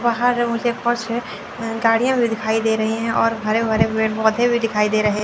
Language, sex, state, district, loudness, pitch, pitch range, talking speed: Hindi, female, Chandigarh, Chandigarh, -19 LUFS, 225 Hz, 220-235 Hz, 205 wpm